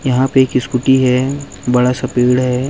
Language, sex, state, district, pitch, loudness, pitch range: Hindi, male, Chhattisgarh, Rajnandgaon, 130 Hz, -14 LUFS, 125-130 Hz